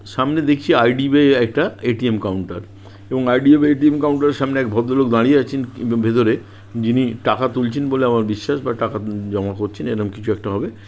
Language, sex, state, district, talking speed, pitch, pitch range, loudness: Bengali, male, West Bengal, Purulia, 210 wpm, 120 Hz, 105-135 Hz, -18 LUFS